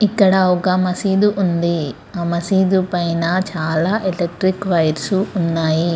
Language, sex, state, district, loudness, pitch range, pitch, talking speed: Telugu, female, Andhra Pradesh, Krishna, -17 LUFS, 170-190 Hz, 180 Hz, 110 wpm